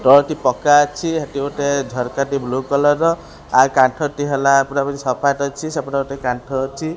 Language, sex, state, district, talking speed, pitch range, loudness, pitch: Odia, female, Odisha, Khordha, 170 wpm, 135-145 Hz, -18 LUFS, 140 Hz